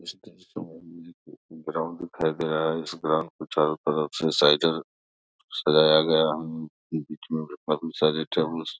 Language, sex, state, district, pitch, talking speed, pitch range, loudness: Hindi, male, Bihar, Darbhanga, 80 Hz, 155 wpm, 75-80 Hz, -25 LUFS